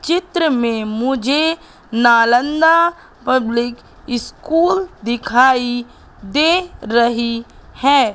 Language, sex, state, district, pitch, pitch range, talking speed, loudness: Hindi, female, Madhya Pradesh, Katni, 255 Hz, 235-325 Hz, 75 wpm, -16 LUFS